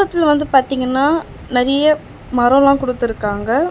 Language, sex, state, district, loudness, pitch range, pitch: Tamil, female, Tamil Nadu, Chennai, -16 LUFS, 250-295 Hz, 270 Hz